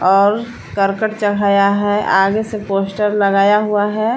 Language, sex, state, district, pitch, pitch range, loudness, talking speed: Hindi, female, Jharkhand, Palamu, 205 Hz, 195-210 Hz, -15 LUFS, 145 wpm